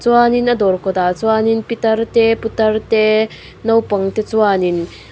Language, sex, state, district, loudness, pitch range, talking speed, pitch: Mizo, female, Mizoram, Aizawl, -15 LUFS, 200-225 Hz, 150 wpm, 220 Hz